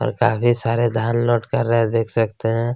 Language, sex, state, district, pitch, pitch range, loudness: Hindi, male, Chhattisgarh, Kabirdham, 115 Hz, 115-120 Hz, -19 LUFS